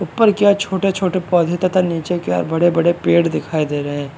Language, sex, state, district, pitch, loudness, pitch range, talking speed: Hindi, male, Maharashtra, Chandrapur, 175 Hz, -17 LUFS, 155-185 Hz, 215 wpm